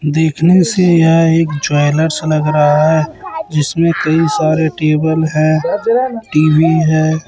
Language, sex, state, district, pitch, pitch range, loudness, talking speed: Hindi, male, Chhattisgarh, Raipur, 160 Hz, 155-165 Hz, -12 LUFS, 125 wpm